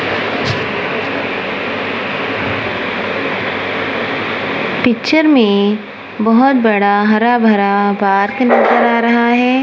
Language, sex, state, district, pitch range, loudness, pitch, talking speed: Hindi, female, Punjab, Kapurthala, 205-245 Hz, -14 LUFS, 230 Hz, 70 wpm